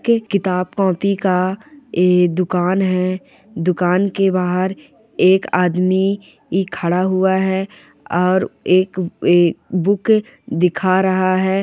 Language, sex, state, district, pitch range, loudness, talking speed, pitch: Hindi, female, Chhattisgarh, Rajnandgaon, 180-195 Hz, -17 LUFS, 120 wpm, 185 Hz